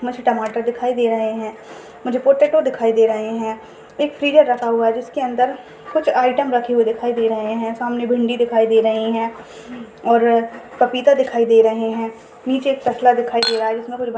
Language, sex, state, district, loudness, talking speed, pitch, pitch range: Hindi, female, Goa, North and South Goa, -18 LUFS, 205 wpm, 235 Hz, 225-250 Hz